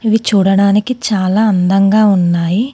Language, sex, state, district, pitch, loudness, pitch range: Telugu, female, Telangana, Komaram Bheem, 200 Hz, -12 LUFS, 190-220 Hz